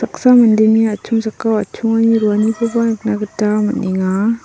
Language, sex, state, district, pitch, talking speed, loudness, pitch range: Garo, female, Meghalaya, South Garo Hills, 220 Hz, 95 wpm, -15 LUFS, 210-230 Hz